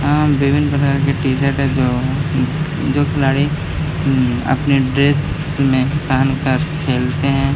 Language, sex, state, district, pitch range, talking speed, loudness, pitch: Hindi, male, Bihar, Gaya, 135-145 Hz, 120 wpm, -16 LUFS, 140 Hz